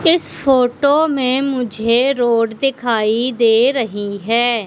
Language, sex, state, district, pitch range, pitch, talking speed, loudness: Hindi, female, Madhya Pradesh, Katni, 230-270 Hz, 245 Hz, 115 wpm, -16 LUFS